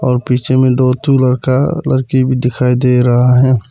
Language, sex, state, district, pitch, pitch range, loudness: Hindi, male, Arunachal Pradesh, Papum Pare, 130 Hz, 125-130 Hz, -12 LUFS